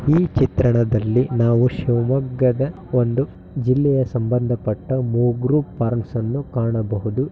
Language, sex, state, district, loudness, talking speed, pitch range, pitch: Kannada, male, Karnataka, Shimoga, -20 LUFS, 90 wpm, 115-130 Hz, 125 Hz